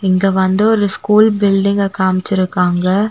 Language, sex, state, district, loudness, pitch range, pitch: Tamil, female, Tamil Nadu, Nilgiris, -14 LUFS, 185-205 Hz, 195 Hz